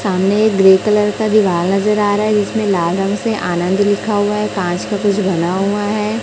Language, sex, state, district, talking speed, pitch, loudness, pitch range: Hindi, female, Chhattisgarh, Raipur, 220 wpm, 205 Hz, -15 LUFS, 190-210 Hz